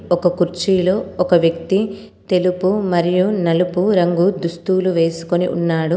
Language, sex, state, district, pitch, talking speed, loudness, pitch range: Telugu, female, Telangana, Komaram Bheem, 180 Hz, 110 wpm, -17 LUFS, 175-185 Hz